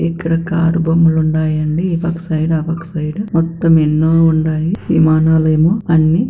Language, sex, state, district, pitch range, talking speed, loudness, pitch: Telugu, female, Andhra Pradesh, Anantapur, 160-170 Hz, 150 wpm, -14 LUFS, 165 Hz